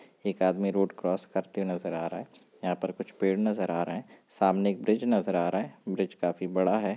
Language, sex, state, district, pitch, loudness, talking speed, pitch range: Hindi, male, Andhra Pradesh, Visakhapatnam, 95 Hz, -29 LUFS, 235 wpm, 90-100 Hz